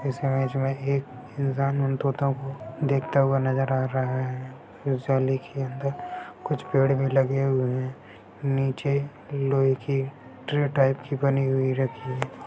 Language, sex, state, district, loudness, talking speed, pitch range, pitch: Hindi, male, Bihar, Sitamarhi, -26 LUFS, 155 wpm, 130-140 Hz, 135 Hz